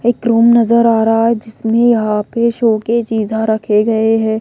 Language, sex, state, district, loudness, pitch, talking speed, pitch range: Hindi, female, Odisha, Malkangiri, -13 LUFS, 225 Hz, 205 wpm, 220-235 Hz